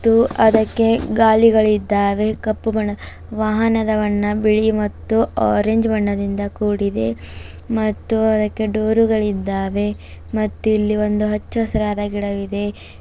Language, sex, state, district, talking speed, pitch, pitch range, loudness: Kannada, female, Karnataka, Bidar, 90 wpm, 215 Hz, 205-220 Hz, -18 LUFS